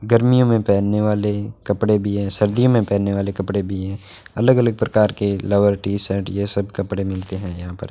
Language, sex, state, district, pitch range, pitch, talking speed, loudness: Hindi, male, Rajasthan, Bikaner, 100-105 Hz, 100 Hz, 205 wpm, -19 LUFS